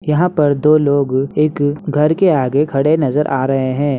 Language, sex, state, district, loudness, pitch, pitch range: Hindi, male, Bihar, Begusarai, -15 LUFS, 145 Hz, 140-155 Hz